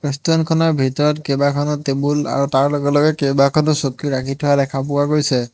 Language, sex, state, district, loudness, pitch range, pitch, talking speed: Assamese, male, Assam, Hailakandi, -17 LUFS, 140-150 Hz, 145 Hz, 165 wpm